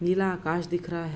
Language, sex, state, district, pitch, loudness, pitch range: Hindi, female, Bihar, Araria, 175 Hz, -28 LUFS, 165-180 Hz